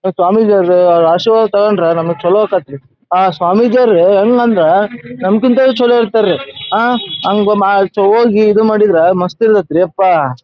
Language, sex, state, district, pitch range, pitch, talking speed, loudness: Kannada, male, Karnataka, Dharwad, 180-225 Hz, 200 Hz, 120 wpm, -11 LUFS